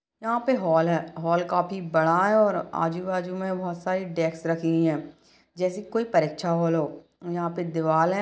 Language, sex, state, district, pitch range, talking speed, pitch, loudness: Hindi, female, Chhattisgarh, Kabirdham, 165-185 Hz, 205 wpm, 170 Hz, -25 LUFS